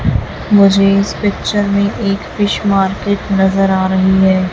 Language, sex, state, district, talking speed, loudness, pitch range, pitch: Hindi, female, Chhattisgarh, Raipur, 145 wpm, -13 LUFS, 190-200 Hz, 195 Hz